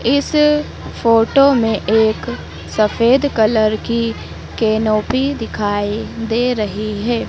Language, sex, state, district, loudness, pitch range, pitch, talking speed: Hindi, female, Madhya Pradesh, Dhar, -16 LUFS, 215-255 Hz, 225 Hz, 100 wpm